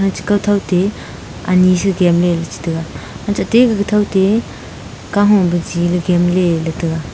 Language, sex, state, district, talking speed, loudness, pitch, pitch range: Wancho, female, Arunachal Pradesh, Longding, 175 wpm, -15 LUFS, 185 Hz, 175-205 Hz